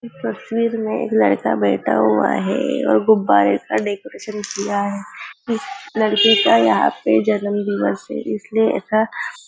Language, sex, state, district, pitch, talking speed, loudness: Hindi, female, Maharashtra, Nagpur, 205 Hz, 145 wpm, -18 LUFS